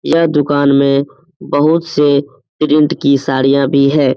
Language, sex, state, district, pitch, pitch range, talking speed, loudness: Hindi, male, Bihar, Jamui, 145 Hz, 140-150 Hz, 145 wpm, -12 LUFS